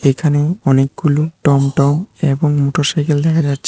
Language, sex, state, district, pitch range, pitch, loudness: Bengali, male, Tripura, West Tripura, 140-155 Hz, 145 Hz, -15 LUFS